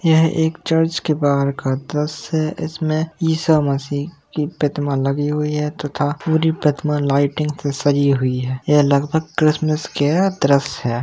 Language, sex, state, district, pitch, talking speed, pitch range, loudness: Hindi, male, Uttar Pradesh, Jalaun, 150 Hz, 165 wpm, 140-160 Hz, -19 LUFS